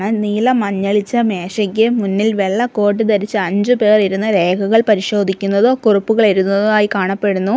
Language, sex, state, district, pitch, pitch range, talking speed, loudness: Malayalam, female, Kerala, Kollam, 210 Hz, 195-220 Hz, 105 wpm, -15 LUFS